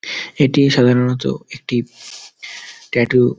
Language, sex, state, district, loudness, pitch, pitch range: Bengali, male, West Bengal, Dakshin Dinajpur, -16 LUFS, 125 Hz, 120-135 Hz